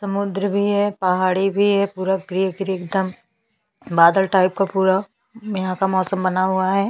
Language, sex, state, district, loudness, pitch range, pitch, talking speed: Hindi, female, Chhattisgarh, Bastar, -19 LUFS, 185-200 Hz, 195 Hz, 150 wpm